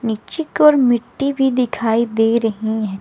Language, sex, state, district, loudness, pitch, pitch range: Hindi, female, Jharkhand, Garhwa, -17 LUFS, 235 Hz, 225-270 Hz